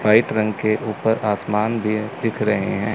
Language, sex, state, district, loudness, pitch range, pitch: Hindi, male, Chandigarh, Chandigarh, -21 LUFS, 105-110 Hz, 110 Hz